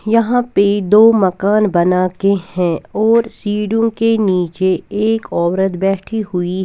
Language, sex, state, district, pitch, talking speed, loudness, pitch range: Hindi, female, Punjab, Kapurthala, 200 Hz, 125 wpm, -15 LUFS, 185-220 Hz